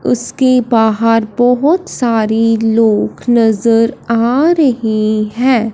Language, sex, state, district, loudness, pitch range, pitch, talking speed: Hindi, male, Punjab, Fazilka, -12 LUFS, 220-250 Hz, 230 Hz, 95 wpm